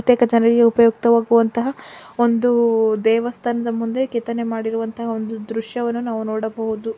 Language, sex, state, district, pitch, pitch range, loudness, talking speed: Kannada, female, Karnataka, Dakshina Kannada, 230 Hz, 225-235 Hz, -19 LUFS, 60 wpm